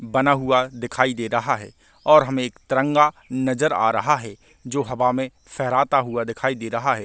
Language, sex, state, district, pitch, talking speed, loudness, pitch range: Hindi, male, Chhattisgarh, Bastar, 130 Hz, 195 wpm, -21 LUFS, 120-140 Hz